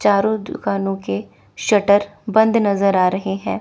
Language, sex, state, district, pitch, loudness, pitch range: Hindi, female, Chandigarh, Chandigarh, 200 Hz, -18 LUFS, 185-205 Hz